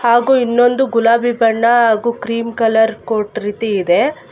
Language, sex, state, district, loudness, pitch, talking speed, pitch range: Kannada, female, Karnataka, Bangalore, -14 LUFS, 230 Hz, 140 wpm, 225-240 Hz